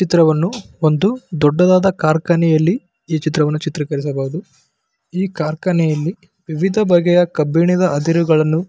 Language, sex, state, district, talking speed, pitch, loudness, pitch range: Kannada, male, Karnataka, Bellary, 90 wpm, 165 Hz, -16 LUFS, 155-180 Hz